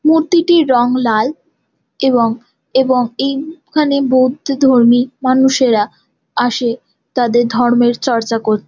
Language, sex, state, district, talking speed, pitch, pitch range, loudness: Bengali, female, West Bengal, Jalpaiguri, 110 wpm, 255 Hz, 240-275 Hz, -14 LUFS